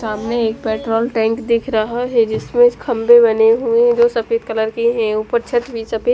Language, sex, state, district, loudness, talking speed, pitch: Hindi, female, Punjab, Fazilka, -16 LUFS, 205 wpm, 235 Hz